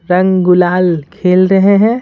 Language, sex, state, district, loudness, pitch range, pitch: Hindi, female, Bihar, Patna, -11 LUFS, 180-195 Hz, 185 Hz